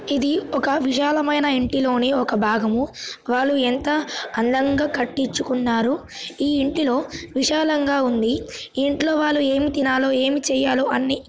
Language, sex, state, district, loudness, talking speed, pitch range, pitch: Telugu, female, Telangana, Karimnagar, -21 LUFS, 115 wpm, 255-290 Hz, 275 Hz